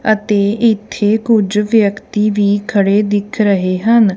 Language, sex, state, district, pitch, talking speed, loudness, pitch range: Punjabi, female, Punjab, Kapurthala, 210 Hz, 130 wpm, -14 LUFS, 200-220 Hz